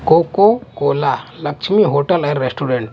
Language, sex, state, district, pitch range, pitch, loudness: Hindi, male, Punjab, Kapurthala, 135-195 Hz, 160 Hz, -16 LUFS